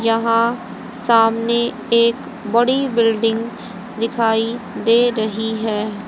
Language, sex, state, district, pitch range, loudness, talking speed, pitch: Hindi, female, Haryana, Jhajjar, 225-235 Hz, -17 LUFS, 90 wpm, 230 Hz